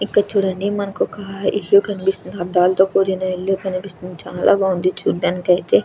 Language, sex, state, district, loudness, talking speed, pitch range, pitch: Telugu, female, Andhra Pradesh, Krishna, -18 LUFS, 145 wpm, 180-200 Hz, 190 Hz